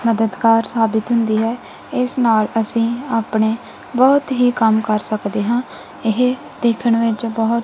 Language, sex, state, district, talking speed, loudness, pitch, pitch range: Punjabi, female, Punjab, Kapurthala, 140 wpm, -17 LUFS, 230 Hz, 220-240 Hz